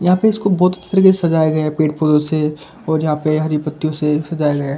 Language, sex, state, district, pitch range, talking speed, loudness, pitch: Hindi, male, Delhi, New Delhi, 150-180 Hz, 265 wpm, -16 LUFS, 155 Hz